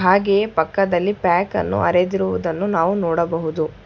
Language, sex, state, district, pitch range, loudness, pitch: Kannada, female, Karnataka, Bangalore, 165-200 Hz, -19 LUFS, 180 Hz